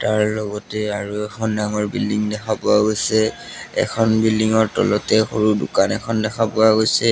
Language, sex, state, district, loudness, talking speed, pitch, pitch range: Assamese, male, Assam, Sonitpur, -19 LUFS, 150 wpm, 110 Hz, 105-110 Hz